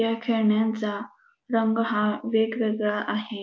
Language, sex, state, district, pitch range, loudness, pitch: Marathi, female, Maharashtra, Dhule, 210-225 Hz, -25 LUFS, 220 Hz